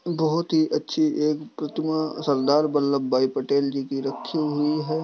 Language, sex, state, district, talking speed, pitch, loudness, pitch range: Hindi, male, Bihar, East Champaran, 155 wpm, 150 Hz, -24 LUFS, 140-155 Hz